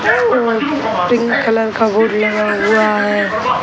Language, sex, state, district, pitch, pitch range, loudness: Hindi, male, Bihar, Sitamarhi, 220 Hz, 210-235 Hz, -14 LUFS